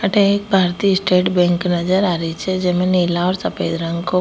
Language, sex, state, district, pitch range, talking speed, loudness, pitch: Rajasthani, female, Rajasthan, Nagaur, 175-190 Hz, 230 wpm, -17 LUFS, 180 Hz